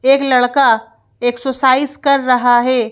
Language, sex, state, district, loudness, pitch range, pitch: Hindi, female, Madhya Pradesh, Bhopal, -13 LUFS, 245-275 Hz, 255 Hz